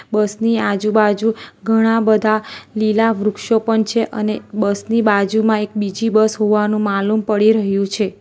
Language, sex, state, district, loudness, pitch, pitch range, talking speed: Gujarati, female, Gujarat, Valsad, -16 LUFS, 215 Hz, 210-225 Hz, 145 wpm